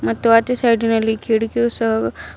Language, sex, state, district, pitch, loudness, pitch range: Kannada, female, Karnataka, Bidar, 225 Hz, -17 LUFS, 220-235 Hz